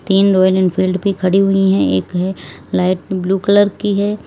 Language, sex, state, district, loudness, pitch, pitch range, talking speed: Hindi, female, Uttar Pradesh, Lalitpur, -15 LUFS, 190 Hz, 185-195 Hz, 195 wpm